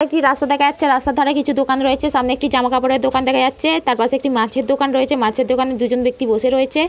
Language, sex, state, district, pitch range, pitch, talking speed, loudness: Bengali, female, West Bengal, North 24 Parganas, 255-285 Hz, 265 Hz, 260 wpm, -17 LUFS